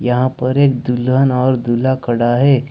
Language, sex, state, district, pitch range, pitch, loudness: Hindi, male, Jharkhand, Deoghar, 120-130 Hz, 130 Hz, -14 LUFS